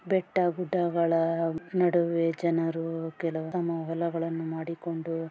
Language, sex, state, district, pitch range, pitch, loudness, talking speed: Kannada, female, Karnataka, Dharwad, 165-175 Hz, 165 Hz, -29 LUFS, 100 wpm